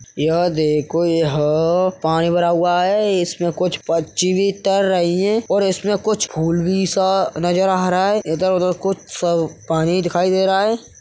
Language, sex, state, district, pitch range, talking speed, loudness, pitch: Hindi, male, Uttar Pradesh, Hamirpur, 165-190 Hz, 165 wpm, -18 LUFS, 180 Hz